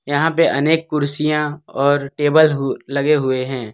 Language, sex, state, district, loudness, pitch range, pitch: Hindi, male, Gujarat, Valsad, -17 LUFS, 140-150 Hz, 145 Hz